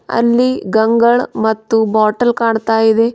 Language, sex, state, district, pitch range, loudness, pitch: Kannada, female, Karnataka, Bidar, 220-235 Hz, -13 LUFS, 225 Hz